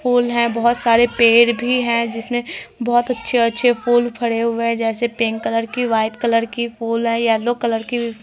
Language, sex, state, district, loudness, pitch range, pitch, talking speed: Hindi, female, Bihar, Katihar, -18 LUFS, 230-240 Hz, 235 Hz, 205 wpm